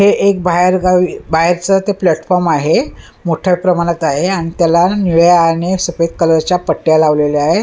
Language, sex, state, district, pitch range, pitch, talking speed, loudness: Marathi, female, Maharashtra, Mumbai Suburban, 165-185 Hz, 175 Hz, 155 wpm, -13 LUFS